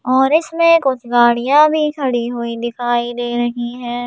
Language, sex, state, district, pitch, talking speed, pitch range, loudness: Hindi, female, Madhya Pradesh, Bhopal, 245 Hz, 160 wpm, 240-280 Hz, -16 LUFS